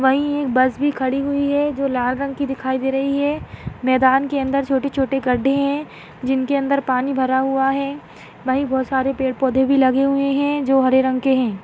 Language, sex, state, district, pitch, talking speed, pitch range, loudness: Hindi, female, Maharashtra, Aurangabad, 270 Hz, 210 wpm, 260-275 Hz, -19 LUFS